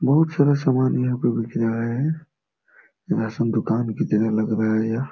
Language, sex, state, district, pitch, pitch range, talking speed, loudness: Hindi, male, Bihar, Jamui, 115 Hz, 110-135 Hz, 190 wpm, -22 LUFS